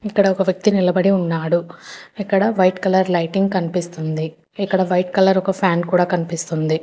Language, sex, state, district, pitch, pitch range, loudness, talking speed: Telugu, female, Telangana, Hyderabad, 185 Hz, 170-195 Hz, -18 LUFS, 150 wpm